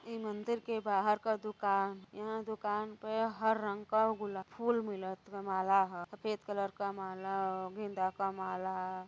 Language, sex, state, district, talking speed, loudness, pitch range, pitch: Hindi, female, Uttar Pradesh, Varanasi, 170 wpm, -36 LUFS, 190-215 Hz, 205 Hz